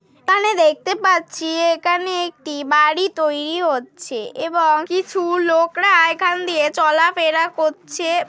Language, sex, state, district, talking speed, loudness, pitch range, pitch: Bengali, female, West Bengal, Dakshin Dinajpur, 115 wpm, -17 LUFS, 315-360 Hz, 335 Hz